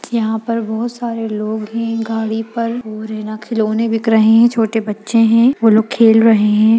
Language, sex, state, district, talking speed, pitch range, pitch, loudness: Kumaoni, female, Uttarakhand, Uttarkashi, 205 wpm, 220-230 Hz, 225 Hz, -15 LUFS